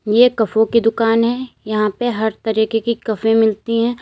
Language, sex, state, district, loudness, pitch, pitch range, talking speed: Hindi, female, Uttar Pradesh, Lalitpur, -17 LUFS, 225 Hz, 220-230 Hz, 195 wpm